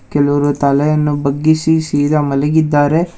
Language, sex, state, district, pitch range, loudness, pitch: Kannada, male, Karnataka, Bangalore, 145-155 Hz, -14 LUFS, 145 Hz